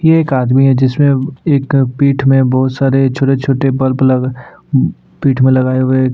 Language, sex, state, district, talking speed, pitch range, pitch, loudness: Hindi, male, Goa, North and South Goa, 175 wpm, 130-135 Hz, 135 Hz, -12 LUFS